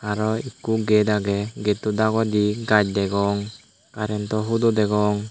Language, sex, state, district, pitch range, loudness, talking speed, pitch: Chakma, male, Tripura, Dhalai, 105-110 Hz, -22 LUFS, 125 wpm, 105 Hz